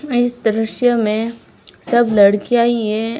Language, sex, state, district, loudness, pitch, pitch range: Hindi, female, Rajasthan, Barmer, -16 LUFS, 230 Hz, 220-240 Hz